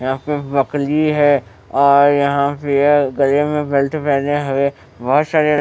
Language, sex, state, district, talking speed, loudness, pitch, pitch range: Hindi, male, Bihar, West Champaran, 150 wpm, -16 LUFS, 140 Hz, 140-145 Hz